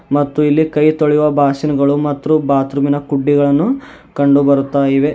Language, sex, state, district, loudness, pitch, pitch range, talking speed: Kannada, male, Karnataka, Bidar, -14 LUFS, 145 Hz, 140-150 Hz, 140 wpm